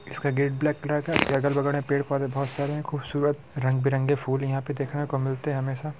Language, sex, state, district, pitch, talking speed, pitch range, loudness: Hindi, male, Bihar, Muzaffarpur, 140 Hz, 220 wpm, 135-145 Hz, -26 LUFS